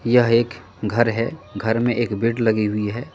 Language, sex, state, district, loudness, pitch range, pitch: Hindi, male, Jharkhand, Deoghar, -21 LUFS, 105-120 Hz, 115 Hz